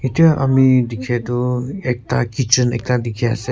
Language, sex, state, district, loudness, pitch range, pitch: Nagamese, male, Nagaland, Kohima, -17 LUFS, 120-130 Hz, 125 Hz